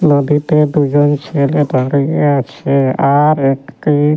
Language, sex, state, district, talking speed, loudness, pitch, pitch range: Bengali, male, West Bengal, Jhargram, 115 wpm, -13 LUFS, 145 Hz, 140-150 Hz